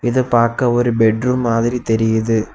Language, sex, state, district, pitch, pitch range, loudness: Tamil, male, Tamil Nadu, Kanyakumari, 115 Hz, 115-120 Hz, -16 LUFS